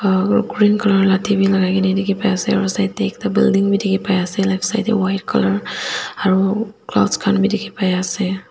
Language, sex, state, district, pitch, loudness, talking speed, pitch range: Nagamese, female, Nagaland, Dimapur, 195 Hz, -17 LUFS, 160 wpm, 185-200 Hz